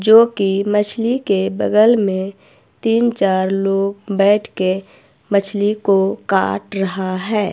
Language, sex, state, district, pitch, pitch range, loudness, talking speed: Hindi, female, Himachal Pradesh, Shimla, 200 Hz, 195-210 Hz, -17 LUFS, 125 wpm